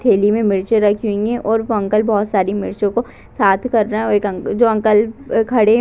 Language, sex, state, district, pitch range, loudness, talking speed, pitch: Hindi, female, Bihar, Bhagalpur, 205-225 Hz, -16 LUFS, 240 wpm, 215 Hz